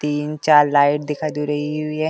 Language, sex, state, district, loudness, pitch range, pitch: Hindi, male, Uttar Pradesh, Deoria, -18 LUFS, 145-155 Hz, 150 Hz